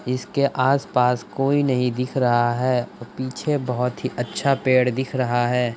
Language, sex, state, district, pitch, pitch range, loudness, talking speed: Hindi, male, Uttar Pradesh, Budaun, 125 Hz, 125-135 Hz, -21 LUFS, 155 wpm